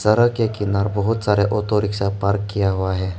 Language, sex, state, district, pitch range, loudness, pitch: Hindi, male, Arunachal Pradesh, Lower Dibang Valley, 100-105 Hz, -20 LUFS, 105 Hz